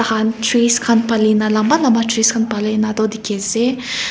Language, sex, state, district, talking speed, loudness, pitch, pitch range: Nagamese, female, Nagaland, Kohima, 160 wpm, -16 LUFS, 225 Hz, 215-235 Hz